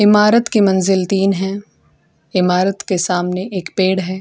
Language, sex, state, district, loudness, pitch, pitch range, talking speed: Hindi, female, Bihar, Gaya, -16 LUFS, 190 Hz, 180-200 Hz, 155 wpm